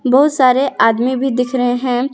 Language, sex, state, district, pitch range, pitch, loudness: Hindi, female, Jharkhand, Garhwa, 250-265 Hz, 255 Hz, -14 LUFS